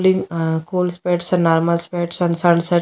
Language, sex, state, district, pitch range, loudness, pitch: Telugu, female, Andhra Pradesh, Annamaya, 170-180 Hz, -18 LUFS, 175 Hz